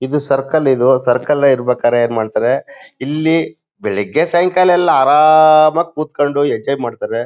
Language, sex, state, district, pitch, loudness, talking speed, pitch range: Kannada, male, Karnataka, Mysore, 145 Hz, -13 LUFS, 130 wpm, 125-155 Hz